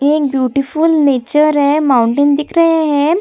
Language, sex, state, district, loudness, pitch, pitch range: Hindi, female, Chhattisgarh, Sukma, -12 LUFS, 290 Hz, 275-305 Hz